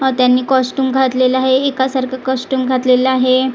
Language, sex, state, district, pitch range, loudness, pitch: Marathi, female, Maharashtra, Gondia, 255-260 Hz, -14 LUFS, 260 Hz